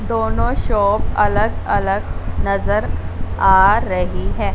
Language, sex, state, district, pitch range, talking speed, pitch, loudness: Hindi, female, Punjab, Fazilka, 85-100 Hz, 105 wpm, 90 Hz, -18 LUFS